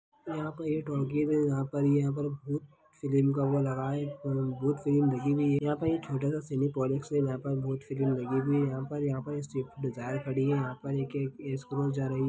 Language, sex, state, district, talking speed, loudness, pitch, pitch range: Hindi, male, Chhattisgarh, Bastar, 235 wpm, -31 LUFS, 140 Hz, 135-145 Hz